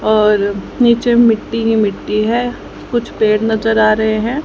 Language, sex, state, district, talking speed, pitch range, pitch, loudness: Hindi, female, Haryana, Jhajjar, 160 wpm, 215-235 Hz, 220 Hz, -14 LUFS